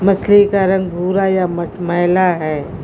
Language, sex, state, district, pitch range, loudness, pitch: Hindi, female, Uttar Pradesh, Lucknow, 175-195 Hz, -15 LUFS, 185 Hz